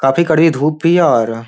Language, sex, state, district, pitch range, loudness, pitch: Hindi, male, Bihar, Jamui, 135-170 Hz, -12 LUFS, 155 Hz